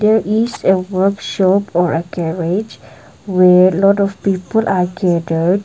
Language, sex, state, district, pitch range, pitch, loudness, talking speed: English, female, Nagaland, Dimapur, 180-200 Hz, 185 Hz, -15 LUFS, 140 wpm